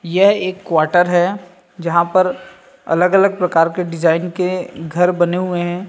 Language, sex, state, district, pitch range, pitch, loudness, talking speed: Hindi, male, Chhattisgarh, Rajnandgaon, 170-185 Hz, 180 Hz, -16 LUFS, 165 wpm